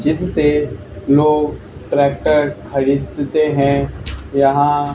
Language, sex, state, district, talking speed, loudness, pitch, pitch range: Hindi, male, Haryana, Charkhi Dadri, 75 wpm, -16 LUFS, 145 Hz, 140-150 Hz